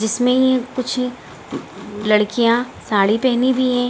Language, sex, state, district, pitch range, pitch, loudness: Hindi, female, Bihar, Gaya, 220-255 Hz, 245 Hz, -18 LUFS